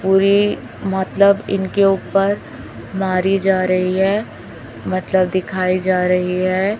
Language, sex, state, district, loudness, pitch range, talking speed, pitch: Hindi, female, Chhattisgarh, Raipur, -17 LUFS, 185-195 Hz, 115 wpm, 190 Hz